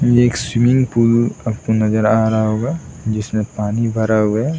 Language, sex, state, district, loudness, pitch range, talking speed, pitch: Hindi, male, Bihar, Saran, -17 LUFS, 110-120 Hz, 180 wpm, 110 Hz